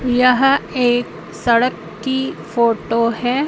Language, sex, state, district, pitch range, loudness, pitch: Hindi, female, Madhya Pradesh, Katni, 230-260 Hz, -17 LUFS, 245 Hz